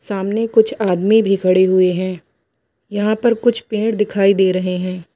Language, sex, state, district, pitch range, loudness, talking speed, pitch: Hindi, female, Uttar Pradesh, Lucknow, 185-215 Hz, -16 LUFS, 175 wpm, 195 Hz